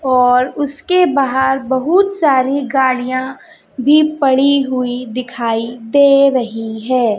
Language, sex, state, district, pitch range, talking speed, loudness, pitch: Hindi, female, Chhattisgarh, Raipur, 250-280 Hz, 110 wpm, -14 LUFS, 260 Hz